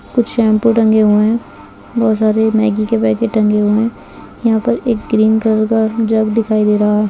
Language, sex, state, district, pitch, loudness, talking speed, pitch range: Hindi, female, Bihar, Kishanganj, 220 Hz, -14 LUFS, 205 wpm, 215-225 Hz